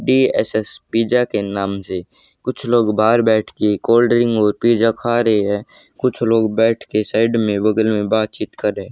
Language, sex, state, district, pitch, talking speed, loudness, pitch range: Hindi, male, Haryana, Rohtak, 110 Hz, 190 wpm, -17 LUFS, 105-120 Hz